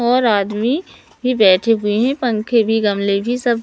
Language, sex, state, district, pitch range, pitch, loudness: Hindi, male, Madhya Pradesh, Katni, 210-245 Hz, 225 Hz, -16 LUFS